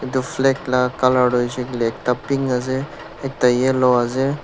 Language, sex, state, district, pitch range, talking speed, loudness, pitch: Nagamese, male, Nagaland, Dimapur, 125-135 Hz, 160 wpm, -19 LUFS, 130 Hz